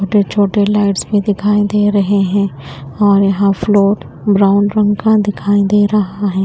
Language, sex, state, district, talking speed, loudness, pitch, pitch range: Hindi, female, Haryana, Jhajjar, 165 wpm, -13 LUFS, 205 Hz, 195-205 Hz